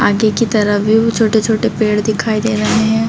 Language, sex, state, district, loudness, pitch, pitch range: Hindi, female, Chhattisgarh, Bilaspur, -14 LUFS, 220 Hz, 215-220 Hz